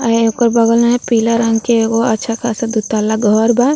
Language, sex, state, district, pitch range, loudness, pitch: Bhojpuri, female, Uttar Pradesh, Ghazipur, 225-235 Hz, -14 LUFS, 230 Hz